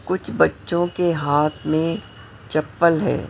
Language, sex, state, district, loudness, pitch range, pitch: Hindi, female, Maharashtra, Mumbai Suburban, -21 LUFS, 145-170 Hz, 160 Hz